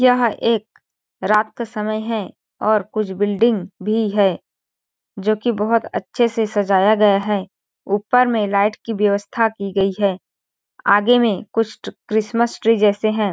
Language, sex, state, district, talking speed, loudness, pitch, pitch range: Hindi, female, Chhattisgarh, Balrampur, 160 wpm, -18 LUFS, 215 Hz, 200-225 Hz